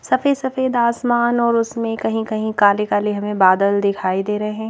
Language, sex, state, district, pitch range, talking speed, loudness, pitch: Hindi, female, Madhya Pradesh, Bhopal, 205-235 Hz, 180 wpm, -18 LUFS, 220 Hz